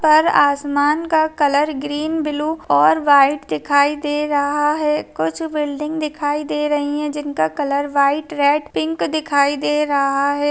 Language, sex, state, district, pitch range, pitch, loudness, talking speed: Hindi, female, Bihar, Darbhanga, 285-300 Hz, 290 Hz, -18 LUFS, 155 wpm